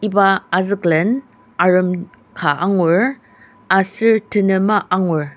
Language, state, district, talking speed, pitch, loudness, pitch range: Ao, Nagaland, Dimapur, 90 wpm, 190 Hz, -16 LUFS, 180-210 Hz